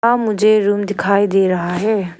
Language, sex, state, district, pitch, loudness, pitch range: Hindi, female, Arunachal Pradesh, Lower Dibang Valley, 205 Hz, -15 LUFS, 190-215 Hz